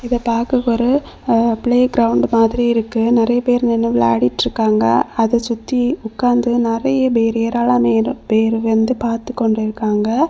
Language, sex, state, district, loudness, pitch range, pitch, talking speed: Tamil, female, Tamil Nadu, Kanyakumari, -16 LUFS, 220-245 Hz, 230 Hz, 115 wpm